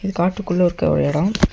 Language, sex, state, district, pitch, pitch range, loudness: Tamil, male, Tamil Nadu, Nilgiris, 185 Hz, 175-195 Hz, -19 LUFS